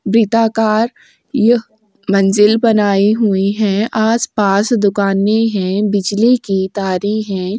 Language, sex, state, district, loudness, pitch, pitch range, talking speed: Hindi, female, Chhattisgarh, Korba, -14 LUFS, 210 Hz, 200-225 Hz, 105 wpm